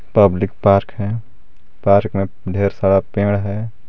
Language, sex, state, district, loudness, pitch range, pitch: Hindi, male, Jharkhand, Garhwa, -17 LUFS, 100-105 Hz, 100 Hz